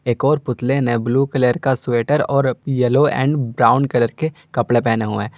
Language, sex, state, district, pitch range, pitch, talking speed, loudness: Hindi, male, Jharkhand, Garhwa, 120-140 Hz, 130 Hz, 200 wpm, -17 LUFS